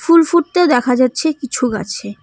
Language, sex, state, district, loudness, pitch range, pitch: Bengali, female, West Bengal, Cooch Behar, -15 LUFS, 245-335 Hz, 265 Hz